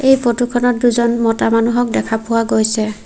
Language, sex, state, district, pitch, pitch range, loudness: Assamese, female, Assam, Sonitpur, 235 Hz, 225-245 Hz, -15 LUFS